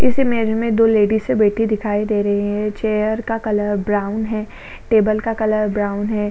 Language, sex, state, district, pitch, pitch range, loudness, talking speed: Hindi, female, Maharashtra, Chandrapur, 215 Hz, 210-225 Hz, -18 LUFS, 190 wpm